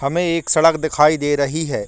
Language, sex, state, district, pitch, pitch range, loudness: Hindi, male, Chhattisgarh, Korba, 155 Hz, 145-165 Hz, -17 LUFS